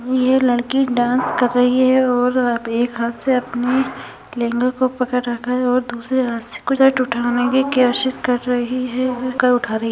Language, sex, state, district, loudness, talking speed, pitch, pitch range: Hindi, female, Bihar, Saharsa, -18 LUFS, 180 wpm, 250 Hz, 245-255 Hz